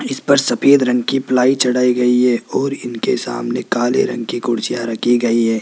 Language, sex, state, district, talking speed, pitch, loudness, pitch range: Hindi, male, Rajasthan, Jaipur, 205 wpm, 125 Hz, -16 LUFS, 120-130 Hz